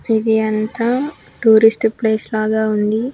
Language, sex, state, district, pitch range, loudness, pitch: Telugu, female, Telangana, Hyderabad, 220-230 Hz, -16 LUFS, 220 Hz